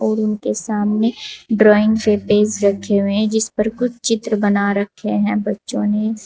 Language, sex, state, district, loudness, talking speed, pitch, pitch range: Hindi, female, Uttar Pradesh, Saharanpur, -17 LUFS, 170 wpm, 210 Hz, 205-220 Hz